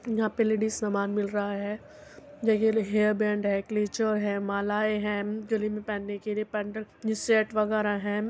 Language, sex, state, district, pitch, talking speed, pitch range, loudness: Hindi, female, Uttar Pradesh, Muzaffarnagar, 210 Hz, 190 wpm, 205-220 Hz, -28 LUFS